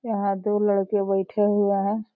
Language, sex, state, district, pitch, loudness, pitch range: Hindi, female, Uttar Pradesh, Deoria, 205 Hz, -23 LUFS, 195-210 Hz